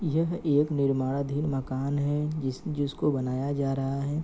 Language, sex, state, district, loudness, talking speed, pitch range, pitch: Hindi, male, Bihar, Gopalganj, -28 LUFS, 155 wpm, 135-150 Hz, 140 Hz